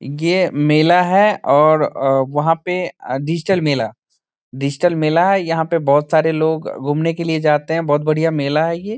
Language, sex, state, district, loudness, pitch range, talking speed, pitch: Hindi, male, Bihar, Saran, -16 LUFS, 145-170 Hz, 185 wpm, 160 Hz